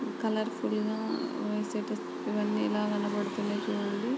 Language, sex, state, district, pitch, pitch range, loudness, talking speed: Telugu, female, Andhra Pradesh, Guntur, 210 Hz, 205-215 Hz, -32 LUFS, 100 wpm